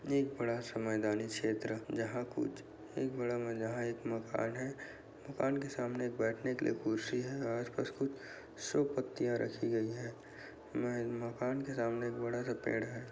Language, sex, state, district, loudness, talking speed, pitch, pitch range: Hindi, male, Uttar Pradesh, Budaun, -38 LUFS, 160 wpm, 120 Hz, 115-125 Hz